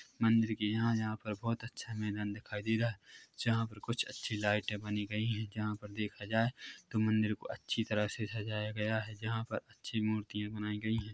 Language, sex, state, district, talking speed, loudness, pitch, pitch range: Hindi, male, Chhattisgarh, Korba, 215 wpm, -36 LUFS, 110 Hz, 105-115 Hz